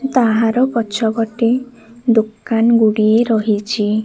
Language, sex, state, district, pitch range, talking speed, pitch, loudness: Odia, female, Odisha, Khordha, 220-235 Hz, 75 wpm, 225 Hz, -15 LUFS